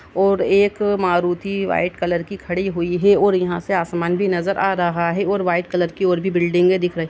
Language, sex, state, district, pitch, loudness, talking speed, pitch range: Hindi, female, Uttar Pradesh, Budaun, 180 Hz, -19 LUFS, 245 wpm, 175-195 Hz